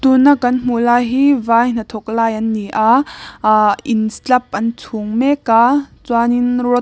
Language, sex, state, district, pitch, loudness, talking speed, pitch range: Mizo, female, Mizoram, Aizawl, 240 Hz, -15 LUFS, 185 wpm, 225-250 Hz